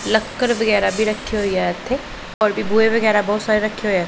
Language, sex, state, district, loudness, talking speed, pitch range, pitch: Punjabi, female, Punjab, Pathankot, -18 LUFS, 205 wpm, 210-220 Hz, 215 Hz